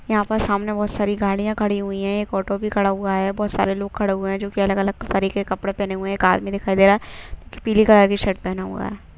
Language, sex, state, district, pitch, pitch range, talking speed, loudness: Hindi, female, Jharkhand, Sahebganj, 200 Hz, 195-205 Hz, 280 wpm, -20 LUFS